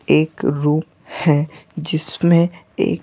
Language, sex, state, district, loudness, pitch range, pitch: Hindi, male, Bihar, Patna, -18 LUFS, 150-165 Hz, 155 Hz